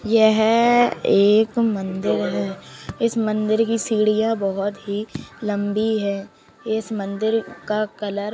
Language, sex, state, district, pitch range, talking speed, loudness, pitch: Hindi, male, Uttar Pradesh, Jalaun, 200-220 Hz, 120 wpm, -21 LUFS, 215 Hz